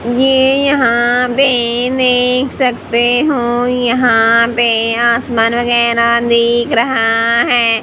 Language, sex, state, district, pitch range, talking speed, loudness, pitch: Hindi, female, Haryana, Jhajjar, 235-250 Hz, 100 wpm, -12 LUFS, 240 Hz